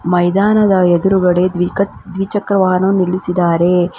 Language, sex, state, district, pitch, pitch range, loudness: Kannada, female, Karnataka, Bangalore, 185 Hz, 175-195 Hz, -14 LUFS